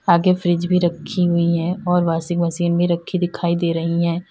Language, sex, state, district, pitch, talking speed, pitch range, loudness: Hindi, female, Uttar Pradesh, Lalitpur, 170 Hz, 210 wpm, 170-175 Hz, -19 LUFS